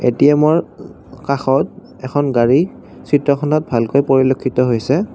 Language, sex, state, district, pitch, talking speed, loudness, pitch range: Assamese, male, Assam, Kamrup Metropolitan, 140 Hz, 105 wpm, -15 LUFS, 130-145 Hz